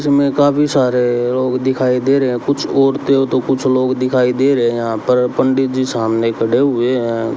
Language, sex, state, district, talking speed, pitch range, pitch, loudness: Hindi, male, Haryana, Rohtak, 205 wpm, 120-135 Hz, 130 Hz, -15 LUFS